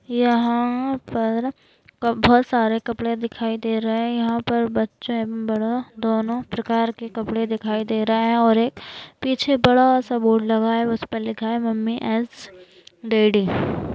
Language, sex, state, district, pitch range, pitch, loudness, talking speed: Hindi, female, Maharashtra, Nagpur, 225-235 Hz, 230 Hz, -21 LUFS, 150 wpm